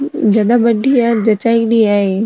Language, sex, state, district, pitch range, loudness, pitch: Marwari, female, Rajasthan, Nagaur, 215-235 Hz, -12 LUFS, 230 Hz